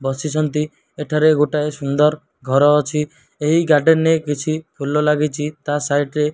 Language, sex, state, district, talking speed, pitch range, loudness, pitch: Odia, male, Odisha, Malkangiri, 140 wpm, 145-155 Hz, -18 LUFS, 150 Hz